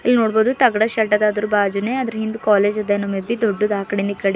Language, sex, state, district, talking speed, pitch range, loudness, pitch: Kannada, female, Karnataka, Bidar, 290 wpm, 205-225 Hz, -18 LUFS, 210 Hz